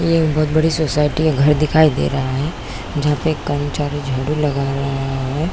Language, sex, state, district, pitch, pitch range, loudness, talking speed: Hindi, female, Chhattisgarh, Korba, 150 Hz, 140-155 Hz, -18 LUFS, 205 wpm